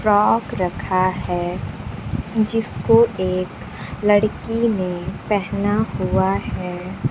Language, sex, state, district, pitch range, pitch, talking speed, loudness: Hindi, female, Bihar, Kaimur, 185-215 Hz, 200 Hz, 85 wpm, -20 LUFS